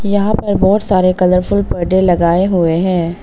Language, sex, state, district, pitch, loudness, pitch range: Hindi, female, Arunachal Pradesh, Papum Pare, 185 Hz, -13 LUFS, 175-200 Hz